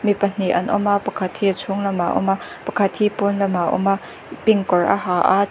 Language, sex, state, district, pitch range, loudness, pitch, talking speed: Mizo, female, Mizoram, Aizawl, 190-205 Hz, -20 LUFS, 200 Hz, 270 wpm